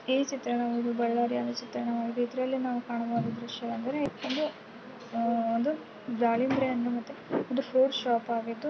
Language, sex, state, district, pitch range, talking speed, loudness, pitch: Kannada, female, Karnataka, Bellary, 235-265 Hz, 130 wpm, -30 LUFS, 240 Hz